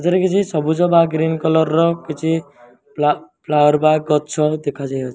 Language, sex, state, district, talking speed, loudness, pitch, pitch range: Odia, male, Odisha, Malkangiri, 140 wpm, -17 LUFS, 155 Hz, 150-165 Hz